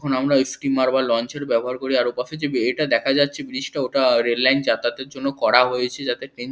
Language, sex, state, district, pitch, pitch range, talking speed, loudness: Bengali, male, West Bengal, Kolkata, 130 Hz, 125-140 Hz, 195 wpm, -21 LUFS